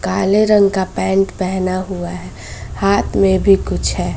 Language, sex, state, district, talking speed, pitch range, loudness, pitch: Hindi, female, Bihar, West Champaran, 175 wpm, 130-195 Hz, -16 LUFS, 190 Hz